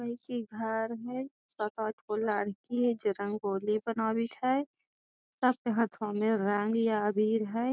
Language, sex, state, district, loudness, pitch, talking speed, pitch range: Magahi, female, Bihar, Gaya, -32 LUFS, 225 Hz, 145 wpm, 210-240 Hz